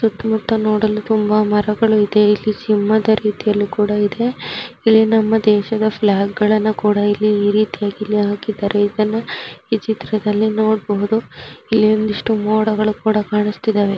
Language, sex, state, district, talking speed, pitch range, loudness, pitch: Kannada, female, Karnataka, Raichur, 130 wpm, 210-220 Hz, -16 LUFS, 215 Hz